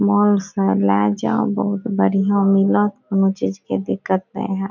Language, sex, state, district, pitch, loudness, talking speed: Maithili, female, Bihar, Saharsa, 195 Hz, -19 LUFS, 165 wpm